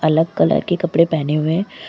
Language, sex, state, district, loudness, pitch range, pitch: Hindi, female, Uttar Pradesh, Lucknow, -17 LUFS, 155-175 Hz, 165 Hz